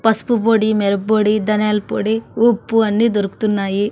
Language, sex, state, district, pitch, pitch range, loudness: Telugu, female, Andhra Pradesh, Annamaya, 215 Hz, 210-225 Hz, -16 LUFS